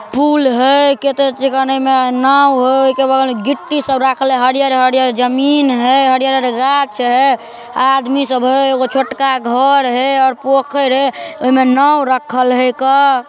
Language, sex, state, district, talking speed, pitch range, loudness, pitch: Maithili, male, Bihar, Darbhanga, 165 wpm, 255-275 Hz, -12 LUFS, 265 Hz